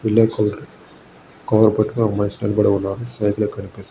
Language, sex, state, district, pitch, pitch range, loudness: Telugu, male, Andhra Pradesh, Guntur, 105 Hz, 100-110 Hz, -19 LUFS